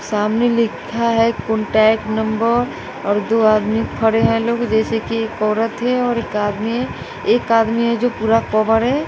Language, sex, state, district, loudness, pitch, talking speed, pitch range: Hindi, female, Bihar, West Champaran, -17 LUFS, 225 Hz, 170 wpm, 220-235 Hz